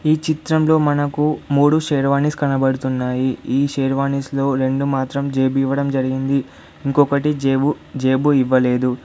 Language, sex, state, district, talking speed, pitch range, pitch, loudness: Telugu, male, Telangana, Adilabad, 125 wpm, 130-145 Hz, 140 Hz, -18 LUFS